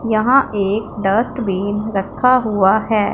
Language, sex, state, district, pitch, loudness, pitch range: Hindi, female, Punjab, Pathankot, 215 Hz, -16 LUFS, 200-230 Hz